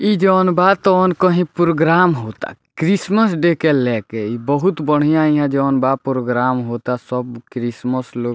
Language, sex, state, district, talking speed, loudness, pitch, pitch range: Bhojpuri, male, Bihar, Muzaffarpur, 165 wpm, -16 LUFS, 145 Hz, 125-180 Hz